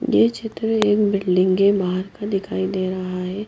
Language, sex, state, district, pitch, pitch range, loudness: Hindi, female, Haryana, Jhajjar, 195 Hz, 185-210 Hz, -20 LUFS